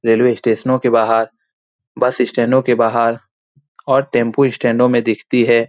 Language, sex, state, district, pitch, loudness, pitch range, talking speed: Hindi, male, Bihar, Saran, 120 Hz, -15 LUFS, 115-125 Hz, 150 wpm